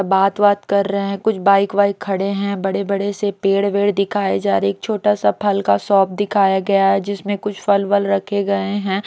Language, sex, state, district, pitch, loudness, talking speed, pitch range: Hindi, female, Maharashtra, Mumbai Suburban, 200 Hz, -17 LUFS, 205 wpm, 195-200 Hz